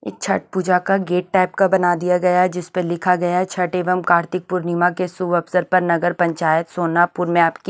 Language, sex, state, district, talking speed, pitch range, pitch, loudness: Hindi, female, Maharashtra, Gondia, 225 wpm, 175-180 Hz, 180 Hz, -18 LUFS